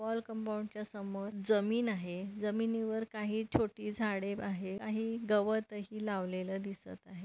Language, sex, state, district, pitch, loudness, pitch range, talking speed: Marathi, female, Maharashtra, Nagpur, 210 Hz, -36 LUFS, 195-220 Hz, 140 wpm